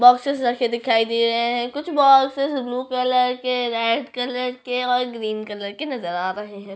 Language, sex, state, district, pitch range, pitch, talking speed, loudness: Hindi, female, Chhattisgarh, Korba, 230-255 Hz, 245 Hz, 195 wpm, -21 LUFS